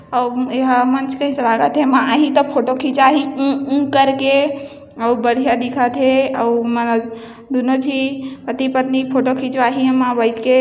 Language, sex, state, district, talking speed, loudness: Chhattisgarhi, female, Chhattisgarh, Bilaspur, 145 wpm, -16 LUFS